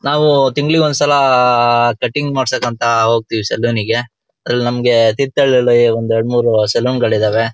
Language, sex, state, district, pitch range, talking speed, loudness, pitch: Kannada, male, Karnataka, Shimoga, 115-135 Hz, 145 wpm, -13 LUFS, 120 Hz